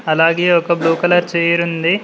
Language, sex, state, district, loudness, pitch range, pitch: Telugu, male, Telangana, Mahabubabad, -14 LUFS, 165-175 Hz, 170 Hz